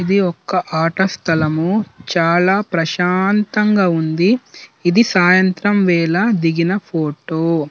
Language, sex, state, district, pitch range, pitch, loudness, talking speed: Telugu, male, Telangana, Nalgonda, 165-195 Hz, 180 Hz, -16 LUFS, 100 wpm